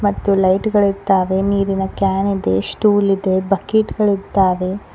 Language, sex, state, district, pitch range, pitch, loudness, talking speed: Kannada, female, Karnataka, Koppal, 190-205 Hz, 195 Hz, -17 LUFS, 120 wpm